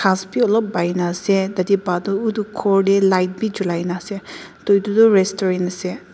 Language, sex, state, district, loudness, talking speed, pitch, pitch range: Nagamese, female, Nagaland, Dimapur, -18 LUFS, 195 wpm, 195 Hz, 180-205 Hz